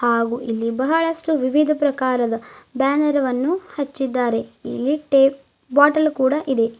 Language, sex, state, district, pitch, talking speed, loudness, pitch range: Kannada, female, Karnataka, Bidar, 270 Hz, 115 wpm, -20 LUFS, 245-295 Hz